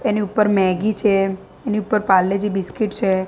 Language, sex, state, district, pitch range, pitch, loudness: Gujarati, female, Gujarat, Gandhinagar, 190-215 Hz, 200 Hz, -19 LUFS